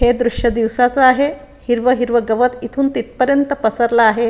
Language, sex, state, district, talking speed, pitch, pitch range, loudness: Marathi, female, Maharashtra, Aurangabad, 155 wpm, 245 Hz, 235-260 Hz, -15 LUFS